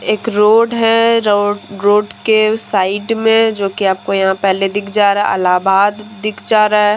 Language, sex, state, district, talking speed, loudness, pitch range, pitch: Hindi, female, Jharkhand, Deoghar, 180 wpm, -13 LUFS, 195-220 Hz, 210 Hz